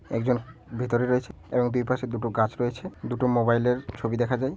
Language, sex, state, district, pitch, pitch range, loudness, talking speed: Bengali, male, West Bengal, Malda, 120 Hz, 115-125 Hz, -26 LUFS, 185 wpm